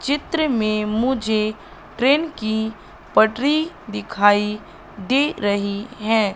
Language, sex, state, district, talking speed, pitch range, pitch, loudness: Hindi, female, Madhya Pradesh, Katni, 95 wpm, 210-270 Hz, 220 Hz, -20 LUFS